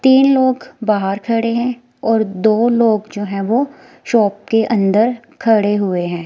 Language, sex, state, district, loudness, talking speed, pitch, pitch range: Hindi, female, Himachal Pradesh, Shimla, -16 LUFS, 165 wpm, 225 Hz, 205-245 Hz